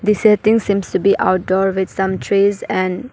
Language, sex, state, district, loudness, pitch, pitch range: English, female, Arunachal Pradesh, Papum Pare, -16 LUFS, 200 Hz, 190-210 Hz